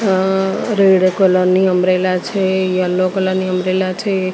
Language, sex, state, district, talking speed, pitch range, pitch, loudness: Gujarati, female, Gujarat, Gandhinagar, 150 wpm, 185-190 Hz, 185 Hz, -15 LUFS